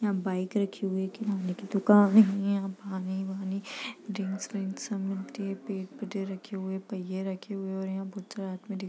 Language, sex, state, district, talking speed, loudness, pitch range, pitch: Hindi, female, Bihar, East Champaran, 175 wpm, -30 LUFS, 190-200 Hz, 195 Hz